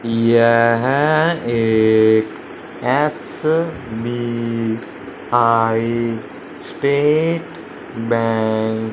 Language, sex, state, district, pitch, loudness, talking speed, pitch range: Hindi, male, Punjab, Fazilka, 115 Hz, -17 LUFS, 40 wpm, 115-140 Hz